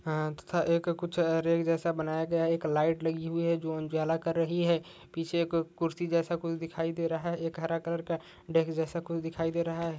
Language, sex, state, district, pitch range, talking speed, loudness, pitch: Hindi, male, Jharkhand, Jamtara, 165-170 Hz, 220 wpm, -31 LUFS, 165 Hz